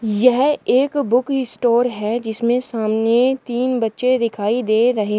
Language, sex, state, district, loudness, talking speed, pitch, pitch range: Hindi, female, Uttar Pradesh, Shamli, -18 LUFS, 140 wpm, 240 Hz, 225-255 Hz